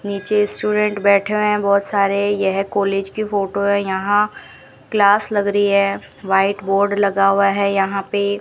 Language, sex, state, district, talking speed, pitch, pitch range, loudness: Hindi, female, Rajasthan, Bikaner, 170 wpm, 200 Hz, 195-205 Hz, -17 LUFS